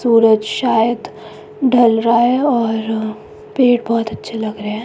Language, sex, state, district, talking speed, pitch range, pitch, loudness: Hindi, female, Himachal Pradesh, Shimla, 150 wpm, 220-245 Hz, 230 Hz, -15 LUFS